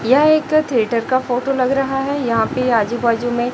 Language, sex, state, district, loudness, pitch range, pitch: Hindi, female, Chhattisgarh, Raipur, -17 LUFS, 235-270 Hz, 255 Hz